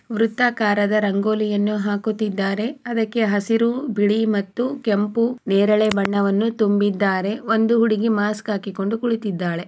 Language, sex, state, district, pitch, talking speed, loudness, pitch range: Kannada, female, Karnataka, Chamarajanagar, 215 Hz, 100 wpm, -20 LUFS, 205-225 Hz